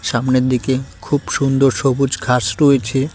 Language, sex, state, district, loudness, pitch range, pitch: Bengali, male, West Bengal, Cooch Behar, -16 LUFS, 125-135 Hz, 135 Hz